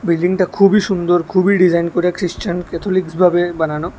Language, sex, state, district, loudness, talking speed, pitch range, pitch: Bengali, male, Tripura, West Tripura, -15 LUFS, 135 wpm, 175-185 Hz, 180 Hz